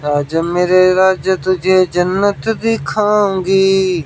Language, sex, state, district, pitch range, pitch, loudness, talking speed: Hindi, male, Haryana, Jhajjar, 180-195 Hz, 185 Hz, -14 LUFS, 45 wpm